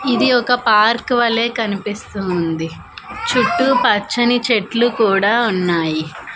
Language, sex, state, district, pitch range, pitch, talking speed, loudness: Telugu, female, Andhra Pradesh, Manyam, 195-240 Hz, 225 Hz, 105 wpm, -16 LUFS